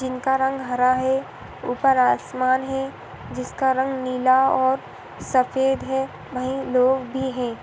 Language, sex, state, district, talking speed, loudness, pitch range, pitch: Hindi, female, Uttar Pradesh, Etah, 135 wpm, -22 LUFS, 255-265 Hz, 260 Hz